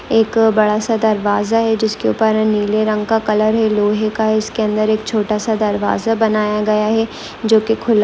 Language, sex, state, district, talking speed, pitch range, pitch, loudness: Hindi, female, West Bengal, Malda, 200 wpm, 215-220 Hz, 215 Hz, -16 LUFS